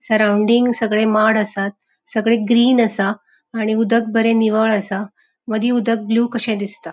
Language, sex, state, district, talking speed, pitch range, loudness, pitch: Konkani, female, Goa, North and South Goa, 145 wpm, 210-230 Hz, -17 LUFS, 220 Hz